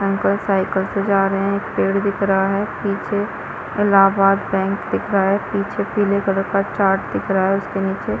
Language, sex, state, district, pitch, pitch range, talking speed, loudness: Hindi, female, Chhattisgarh, Balrampur, 195 Hz, 195-200 Hz, 205 wpm, -19 LUFS